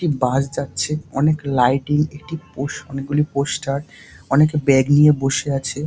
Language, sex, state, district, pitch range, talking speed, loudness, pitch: Bengali, male, West Bengal, Dakshin Dinajpur, 135-150 Hz, 145 wpm, -19 LUFS, 140 Hz